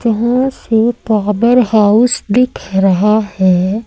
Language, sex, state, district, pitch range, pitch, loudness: Hindi, female, Madhya Pradesh, Umaria, 205-235 Hz, 220 Hz, -12 LUFS